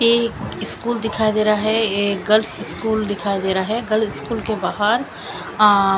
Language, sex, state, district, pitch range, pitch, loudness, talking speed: Hindi, female, Chandigarh, Chandigarh, 205-225 Hz, 215 Hz, -19 LUFS, 180 wpm